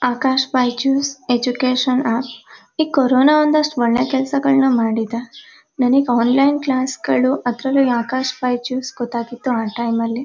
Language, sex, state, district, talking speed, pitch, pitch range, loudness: Kannada, female, Karnataka, Mysore, 130 wpm, 255 Hz, 240-270 Hz, -17 LUFS